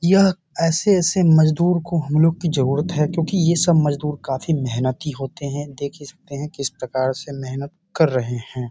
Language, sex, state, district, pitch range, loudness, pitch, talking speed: Hindi, male, Bihar, Samastipur, 135-170 Hz, -20 LUFS, 150 Hz, 195 wpm